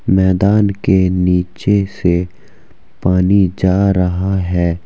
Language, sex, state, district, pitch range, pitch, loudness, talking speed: Hindi, male, Uttar Pradesh, Saharanpur, 90-100 Hz, 95 Hz, -14 LUFS, 100 wpm